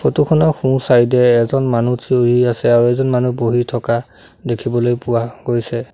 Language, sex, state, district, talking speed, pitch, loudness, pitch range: Assamese, male, Assam, Sonitpur, 180 wpm, 120 Hz, -15 LUFS, 120-125 Hz